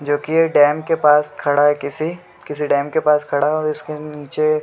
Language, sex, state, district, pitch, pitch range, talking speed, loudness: Hindi, male, Jharkhand, Sahebganj, 150 Hz, 145-155 Hz, 235 wpm, -17 LUFS